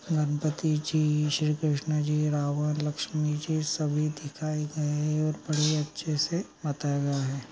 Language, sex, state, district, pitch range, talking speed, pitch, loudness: Magahi, male, Bihar, Gaya, 150-155 Hz, 150 wpm, 150 Hz, -28 LUFS